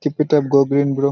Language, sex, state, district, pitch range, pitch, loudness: Hindi, male, Bihar, Araria, 140-150 Hz, 140 Hz, -16 LUFS